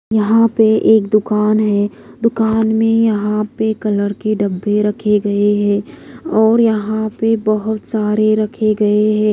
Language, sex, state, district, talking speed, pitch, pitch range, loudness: Hindi, female, Odisha, Malkangiri, 150 wpm, 215 Hz, 210-220 Hz, -15 LUFS